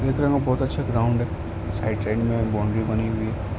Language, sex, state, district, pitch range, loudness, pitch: Hindi, male, Uttar Pradesh, Ghazipur, 105-120 Hz, -24 LUFS, 110 Hz